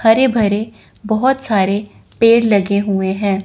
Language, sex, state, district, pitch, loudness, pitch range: Hindi, female, Chandigarh, Chandigarh, 210 Hz, -15 LUFS, 200-230 Hz